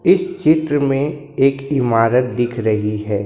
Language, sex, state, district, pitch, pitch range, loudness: Hindi, male, Maharashtra, Gondia, 135 Hz, 115-145 Hz, -17 LUFS